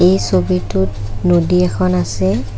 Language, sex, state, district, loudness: Assamese, female, Assam, Kamrup Metropolitan, -16 LUFS